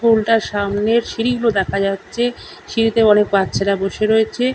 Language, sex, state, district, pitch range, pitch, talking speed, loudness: Bengali, male, West Bengal, Kolkata, 200-230 Hz, 220 Hz, 130 wpm, -17 LUFS